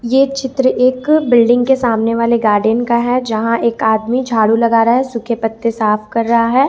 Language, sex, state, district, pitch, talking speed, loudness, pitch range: Hindi, female, Jharkhand, Ranchi, 235 Hz, 205 wpm, -14 LUFS, 230-255 Hz